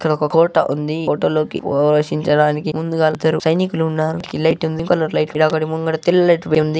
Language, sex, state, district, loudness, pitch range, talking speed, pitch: Telugu, male, Andhra Pradesh, Chittoor, -17 LUFS, 155-160 Hz, 160 wpm, 160 Hz